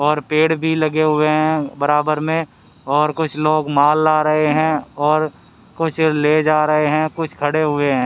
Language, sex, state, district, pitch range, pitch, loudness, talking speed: Hindi, male, Haryana, Rohtak, 150-155 Hz, 155 Hz, -17 LUFS, 185 wpm